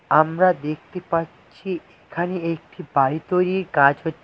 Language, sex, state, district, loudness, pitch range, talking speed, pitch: Bengali, male, West Bengal, Cooch Behar, -22 LUFS, 155-180 Hz, 125 wpm, 170 Hz